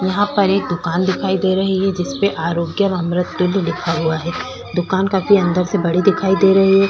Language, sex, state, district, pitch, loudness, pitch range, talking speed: Hindi, female, Chhattisgarh, Korba, 190 Hz, -17 LUFS, 180-195 Hz, 200 wpm